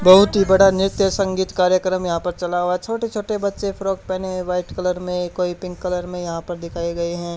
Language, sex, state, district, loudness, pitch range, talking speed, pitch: Hindi, male, Haryana, Charkhi Dadri, -20 LUFS, 175-195 Hz, 235 wpm, 185 Hz